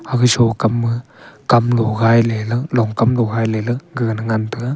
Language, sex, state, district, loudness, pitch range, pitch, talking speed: Wancho, male, Arunachal Pradesh, Longding, -17 LUFS, 115-120 Hz, 115 Hz, 190 wpm